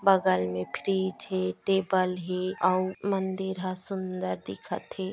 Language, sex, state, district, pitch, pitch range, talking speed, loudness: Chhattisgarhi, female, Chhattisgarh, Bastar, 185 Hz, 180-190 Hz, 150 wpm, -29 LUFS